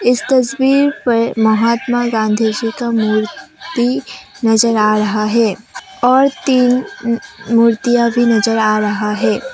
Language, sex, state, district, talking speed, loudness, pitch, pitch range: Hindi, female, Assam, Kamrup Metropolitan, 125 wpm, -14 LUFS, 235 Hz, 220-250 Hz